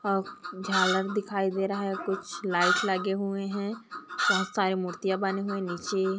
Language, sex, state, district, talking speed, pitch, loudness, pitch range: Hindi, female, Chhattisgarh, Kabirdham, 175 wpm, 195 Hz, -28 LUFS, 185-200 Hz